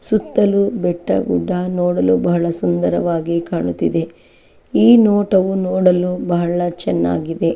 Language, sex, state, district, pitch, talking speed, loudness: Kannada, female, Karnataka, Chamarajanagar, 175 Hz, 105 wpm, -16 LUFS